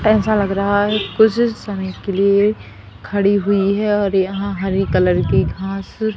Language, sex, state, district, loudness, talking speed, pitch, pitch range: Hindi, female, Madhya Pradesh, Katni, -17 LUFS, 165 wpm, 200 Hz, 195-210 Hz